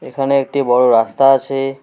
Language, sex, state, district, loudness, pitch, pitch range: Bengali, male, West Bengal, Alipurduar, -14 LUFS, 135 Hz, 125-135 Hz